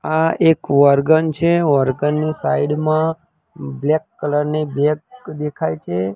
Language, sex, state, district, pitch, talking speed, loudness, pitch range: Gujarati, male, Gujarat, Gandhinagar, 150 Hz, 135 wpm, -17 LUFS, 140-160 Hz